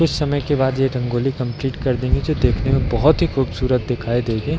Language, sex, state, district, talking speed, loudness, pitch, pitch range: Hindi, male, Bihar, East Champaran, 220 wpm, -19 LUFS, 130 Hz, 125-145 Hz